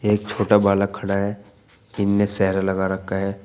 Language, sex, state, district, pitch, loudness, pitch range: Hindi, male, Uttar Pradesh, Shamli, 100 Hz, -21 LUFS, 95-105 Hz